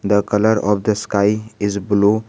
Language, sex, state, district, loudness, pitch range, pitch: English, male, Jharkhand, Garhwa, -17 LUFS, 100-110 Hz, 105 Hz